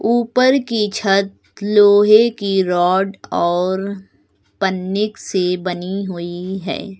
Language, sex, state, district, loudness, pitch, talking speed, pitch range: Hindi, female, Uttar Pradesh, Lucknow, -17 LUFS, 195 Hz, 105 wpm, 180-210 Hz